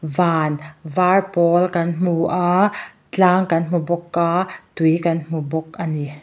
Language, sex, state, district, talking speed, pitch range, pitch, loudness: Mizo, male, Mizoram, Aizawl, 165 wpm, 160-180 Hz, 170 Hz, -19 LUFS